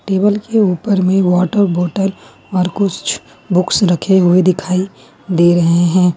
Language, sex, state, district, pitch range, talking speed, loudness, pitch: Hindi, female, Jharkhand, Ranchi, 175-195 Hz, 145 wpm, -14 LUFS, 185 Hz